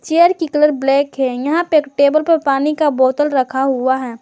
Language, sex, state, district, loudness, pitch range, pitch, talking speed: Hindi, male, Jharkhand, Garhwa, -15 LUFS, 265-310 Hz, 280 Hz, 225 wpm